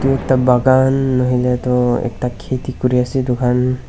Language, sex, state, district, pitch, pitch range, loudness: Nagamese, male, Nagaland, Dimapur, 125 Hz, 125-130 Hz, -16 LUFS